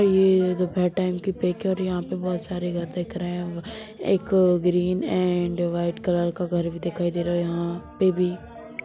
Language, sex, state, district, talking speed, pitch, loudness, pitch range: Hindi, female, Bihar, Gopalganj, 165 wpm, 180 Hz, -24 LUFS, 175-185 Hz